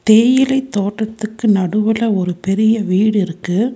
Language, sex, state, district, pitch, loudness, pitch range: Tamil, female, Tamil Nadu, Nilgiris, 215 Hz, -15 LUFS, 195-225 Hz